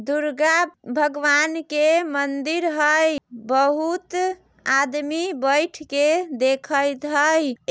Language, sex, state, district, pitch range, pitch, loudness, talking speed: Bajjika, female, Bihar, Vaishali, 280-320 Hz, 295 Hz, -21 LUFS, 85 wpm